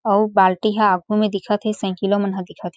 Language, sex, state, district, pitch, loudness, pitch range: Chhattisgarhi, female, Chhattisgarh, Jashpur, 205 Hz, -19 LUFS, 190-210 Hz